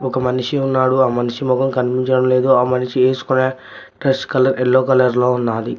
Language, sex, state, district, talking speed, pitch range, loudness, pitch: Telugu, male, Telangana, Mahabubabad, 175 wpm, 125-130 Hz, -16 LUFS, 130 Hz